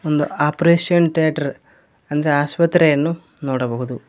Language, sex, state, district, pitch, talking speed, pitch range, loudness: Kannada, male, Karnataka, Koppal, 150 Hz, 90 wpm, 145-165 Hz, -18 LUFS